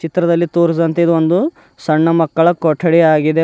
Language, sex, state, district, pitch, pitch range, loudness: Kannada, male, Karnataka, Bidar, 165 Hz, 160-170 Hz, -14 LUFS